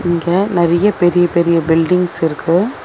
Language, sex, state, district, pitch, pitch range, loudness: Tamil, female, Tamil Nadu, Chennai, 175 Hz, 170-180 Hz, -14 LUFS